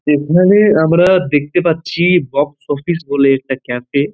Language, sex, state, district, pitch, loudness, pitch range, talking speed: Bengali, male, West Bengal, Purulia, 150 Hz, -13 LUFS, 140-175 Hz, 145 wpm